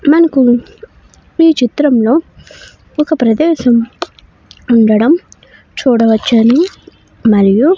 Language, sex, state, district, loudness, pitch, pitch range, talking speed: Telugu, female, Karnataka, Bellary, -11 LUFS, 255 Hz, 230-320 Hz, 60 wpm